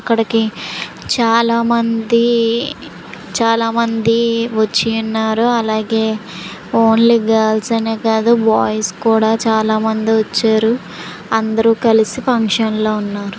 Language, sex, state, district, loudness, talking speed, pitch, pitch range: Telugu, female, Andhra Pradesh, Visakhapatnam, -15 LUFS, 105 wpm, 225 Hz, 220-230 Hz